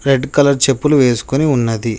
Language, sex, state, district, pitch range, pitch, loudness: Telugu, male, Telangana, Mahabubabad, 120-145 Hz, 135 Hz, -14 LUFS